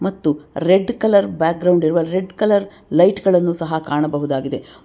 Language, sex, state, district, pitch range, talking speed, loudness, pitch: Kannada, female, Karnataka, Bangalore, 155-195 Hz, 135 wpm, -17 LUFS, 170 Hz